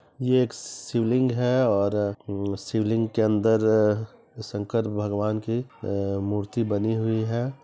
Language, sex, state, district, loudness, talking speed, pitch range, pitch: Hindi, male, Chhattisgarh, Bilaspur, -25 LUFS, 135 wpm, 105-120 Hz, 110 Hz